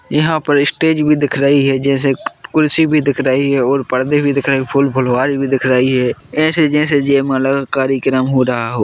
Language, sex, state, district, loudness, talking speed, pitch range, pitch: Hindi, male, Chhattisgarh, Korba, -14 LUFS, 215 wpm, 130-145 Hz, 140 Hz